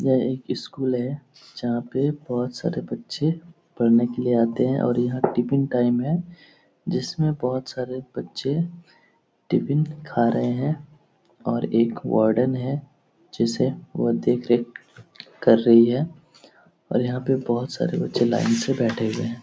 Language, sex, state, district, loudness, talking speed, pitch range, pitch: Hindi, male, Bihar, Lakhisarai, -23 LUFS, 150 wpm, 120-145 Hz, 130 Hz